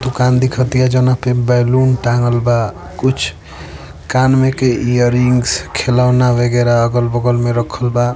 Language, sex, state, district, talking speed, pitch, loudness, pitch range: Bhojpuri, male, Uttar Pradesh, Varanasi, 145 wpm, 120 Hz, -14 LUFS, 120-125 Hz